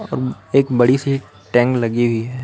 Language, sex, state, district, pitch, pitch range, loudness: Hindi, male, Chhattisgarh, Raipur, 120 Hz, 115-130 Hz, -17 LUFS